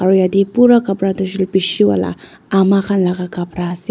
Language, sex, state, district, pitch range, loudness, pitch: Nagamese, female, Nagaland, Dimapur, 175-195 Hz, -15 LUFS, 190 Hz